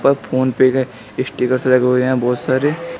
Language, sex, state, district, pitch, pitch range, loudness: Hindi, male, Uttar Pradesh, Shamli, 130 Hz, 125-130 Hz, -17 LUFS